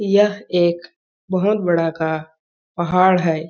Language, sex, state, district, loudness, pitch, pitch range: Hindi, male, Chhattisgarh, Balrampur, -18 LUFS, 175 Hz, 165-190 Hz